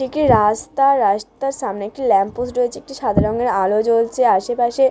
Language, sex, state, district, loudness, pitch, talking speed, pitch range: Bengali, female, West Bengal, Dakshin Dinajpur, -18 LUFS, 240 Hz, 170 wpm, 210-265 Hz